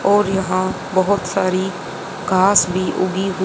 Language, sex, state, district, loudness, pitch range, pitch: Hindi, female, Haryana, Jhajjar, -18 LUFS, 185-195 Hz, 190 Hz